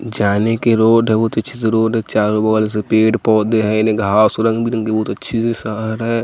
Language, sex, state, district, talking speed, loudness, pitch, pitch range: Hindi, male, Bihar, West Champaran, 220 wpm, -16 LUFS, 110 Hz, 110-115 Hz